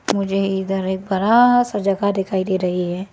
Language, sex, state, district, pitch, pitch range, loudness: Hindi, female, Arunachal Pradesh, Lower Dibang Valley, 195 Hz, 190-200 Hz, -18 LUFS